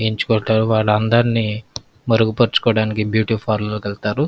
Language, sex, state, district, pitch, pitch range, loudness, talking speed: Telugu, male, Andhra Pradesh, Krishna, 110 Hz, 105-115 Hz, -18 LUFS, 110 wpm